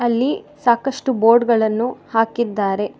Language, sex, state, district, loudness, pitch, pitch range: Kannada, female, Karnataka, Bangalore, -18 LUFS, 235 Hz, 225-255 Hz